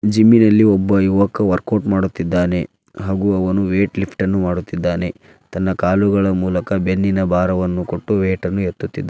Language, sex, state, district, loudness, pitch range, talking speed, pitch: Kannada, male, Karnataka, Dharwad, -17 LUFS, 90-100 Hz, 125 wpm, 95 Hz